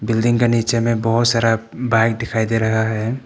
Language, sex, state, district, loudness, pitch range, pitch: Hindi, male, Arunachal Pradesh, Papum Pare, -18 LUFS, 110-115 Hz, 115 Hz